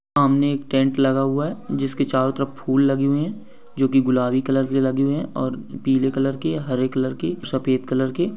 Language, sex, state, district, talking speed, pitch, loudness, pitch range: Hindi, male, Maharashtra, Aurangabad, 215 wpm, 135 Hz, -21 LUFS, 130-140 Hz